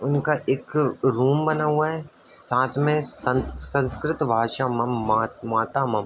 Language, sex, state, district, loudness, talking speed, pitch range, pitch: Hindi, male, Uttar Pradesh, Budaun, -23 LUFS, 150 wpm, 120-150 Hz, 130 Hz